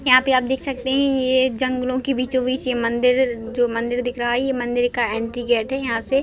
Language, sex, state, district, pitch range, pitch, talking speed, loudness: Hindi, female, Chhattisgarh, Raigarh, 240-260 Hz, 255 Hz, 250 wpm, -20 LUFS